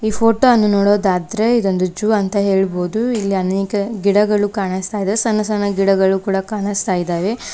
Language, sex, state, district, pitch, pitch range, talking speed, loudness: Kannada, female, Karnataka, Koppal, 200 Hz, 195-215 Hz, 145 wpm, -17 LUFS